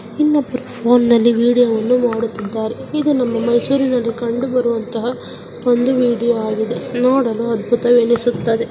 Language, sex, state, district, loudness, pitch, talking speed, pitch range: Kannada, female, Karnataka, Mysore, -16 LUFS, 240 Hz, 105 wpm, 230-250 Hz